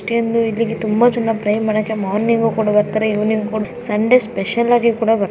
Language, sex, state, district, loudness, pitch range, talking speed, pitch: Kannada, female, Karnataka, Raichur, -17 LUFS, 215-230 Hz, 180 wpm, 220 Hz